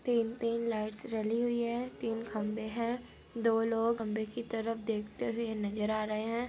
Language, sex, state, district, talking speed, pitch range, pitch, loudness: Hindi, female, Andhra Pradesh, Anantapur, 175 wpm, 220-235 Hz, 230 Hz, -34 LUFS